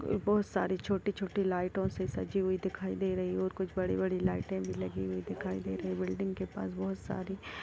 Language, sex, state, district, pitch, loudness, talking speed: Hindi, female, Uttar Pradesh, Etah, 180 Hz, -34 LUFS, 205 wpm